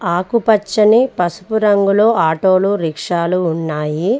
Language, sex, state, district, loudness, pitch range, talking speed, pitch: Telugu, female, Telangana, Mahabubabad, -15 LUFS, 170-215 Hz, 100 wpm, 190 Hz